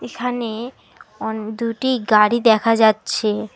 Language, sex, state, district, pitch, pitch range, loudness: Bengali, female, West Bengal, Alipurduar, 225 Hz, 215-235 Hz, -18 LUFS